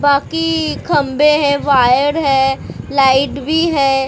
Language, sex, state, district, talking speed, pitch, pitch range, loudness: Hindi, female, Maharashtra, Mumbai Suburban, 130 wpm, 280 Hz, 270-300 Hz, -14 LUFS